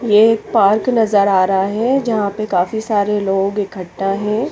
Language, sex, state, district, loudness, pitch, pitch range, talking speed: Hindi, female, Chandigarh, Chandigarh, -16 LUFS, 205 Hz, 195-220 Hz, 170 wpm